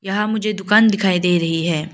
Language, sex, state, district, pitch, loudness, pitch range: Hindi, female, Arunachal Pradesh, Lower Dibang Valley, 195 Hz, -17 LUFS, 170-210 Hz